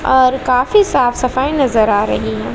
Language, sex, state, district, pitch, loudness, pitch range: Hindi, female, Bihar, West Champaran, 250 Hz, -14 LUFS, 205-260 Hz